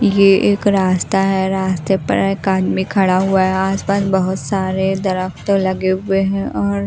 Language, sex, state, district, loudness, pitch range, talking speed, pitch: Hindi, female, Bihar, Katihar, -16 LUFS, 185-195 Hz, 175 wpm, 190 Hz